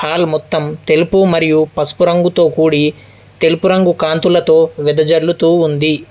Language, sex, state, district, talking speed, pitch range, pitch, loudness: Telugu, male, Telangana, Adilabad, 120 wpm, 155-175 Hz, 160 Hz, -12 LUFS